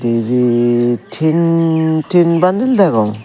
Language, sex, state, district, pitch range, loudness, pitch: Chakma, male, Tripura, Dhalai, 120-170 Hz, -13 LUFS, 160 Hz